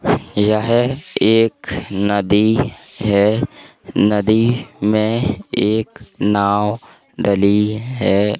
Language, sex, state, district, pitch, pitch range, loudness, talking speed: Hindi, male, Uttar Pradesh, Hamirpur, 105 Hz, 100-110 Hz, -17 LUFS, 70 wpm